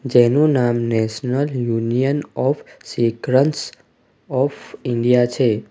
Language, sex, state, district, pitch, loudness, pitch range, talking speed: Gujarati, male, Gujarat, Valsad, 125 Hz, -19 LUFS, 115-135 Hz, 95 wpm